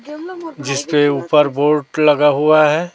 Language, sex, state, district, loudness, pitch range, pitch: Hindi, male, Chhattisgarh, Raipur, -14 LUFS, 145-165 Hz, 150 Hz